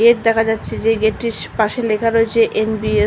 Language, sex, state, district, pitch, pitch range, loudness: Bengali, female, West Bengal, Malda, 225 Hz, 215-230 Hz, -17 LUFS